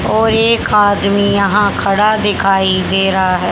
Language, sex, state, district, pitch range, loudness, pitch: Hindi, female, Haryana, Charkhi Dadri, 195-210 Hz, -12 LUFS, 200 Hz